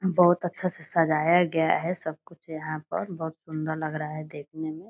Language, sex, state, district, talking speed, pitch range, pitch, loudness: Hindi, female, Bihar, Purnia, 210 wpm, 155-175 Hz, 160 Hz, -27 LUFS